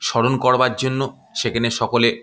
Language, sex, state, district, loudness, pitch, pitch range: Bengali, male, West Bengal, Malda, -19 LUFS, 120 Hz, 115-130 Hz